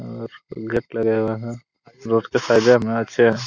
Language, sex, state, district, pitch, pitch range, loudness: Hindi, male, Jharkhand, Jamtara, 115 Hz, 110-120 Hz, -19 LUFS